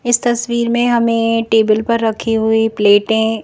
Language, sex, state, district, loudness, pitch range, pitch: Hindi, female, Madhya Pradesh, Bhopal, -14 LUFS, 220-235 Hz, 225 Hz